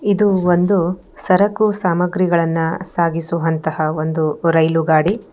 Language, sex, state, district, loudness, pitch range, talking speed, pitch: Kannada, female, Karnataka, Bangalore, -17 LUFS, 165-185 Hz, 90 wpm, 170 Hz